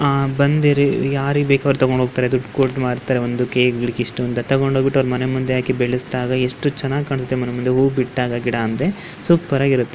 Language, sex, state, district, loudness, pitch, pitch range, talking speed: Kannada, female, Karnataka, Dharwad, -18 LUFS, 130 Hz, 125-140 Hz, 185 wpm